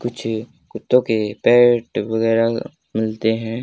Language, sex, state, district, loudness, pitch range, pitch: Hindi, male, Haryana, Charkhi Dadri, -18 LUFS, 110-120 Hz, 115 Hz